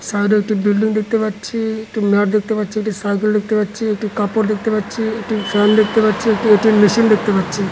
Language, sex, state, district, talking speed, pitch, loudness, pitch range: Bengali, male, West Bengal, Dakshin Dinajpur, 235 wpm, 215 Hz, -16 LUFS, 205-220 Hz